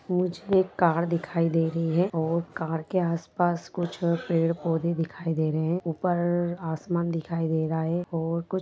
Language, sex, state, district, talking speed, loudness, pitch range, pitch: Hindi, female, Jharkhand, Jamtara, 180 wpm, -27 LUFS, 165-175 Hz, 170 Hz